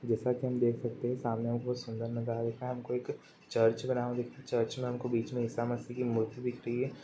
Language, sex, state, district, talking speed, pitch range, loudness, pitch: Hindi, male, Bihar, Jahanabad, 245 wpm, 115-125 Hz, -34 LUFS, 120 Hz